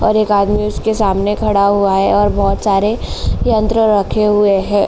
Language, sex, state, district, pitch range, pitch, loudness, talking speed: Hindi, female, Uttar Pradesh, Jalaun, 200-215 Hz, 205 Hz, -14 LUFS, 185 wpm